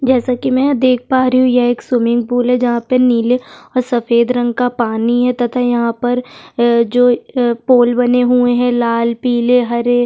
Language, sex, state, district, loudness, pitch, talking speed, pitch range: Hindi, female, Chhattisgarh, Sukma, -14 LUFS, 245 Hz, 205 wpm, 240-250 Hz